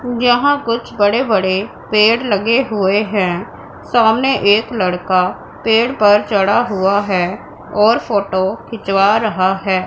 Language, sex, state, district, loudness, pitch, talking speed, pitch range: Hindi, female, Punjab, Pathankot, -15 LUFS, 205 Hz, 130 wpm, 195-230 Hz